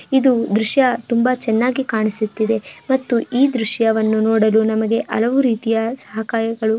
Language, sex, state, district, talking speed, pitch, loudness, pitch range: Kannada, female, Karnataka, Mysore, 125 wpm, 225 Hz, -17 LUFS, 220-250 Hz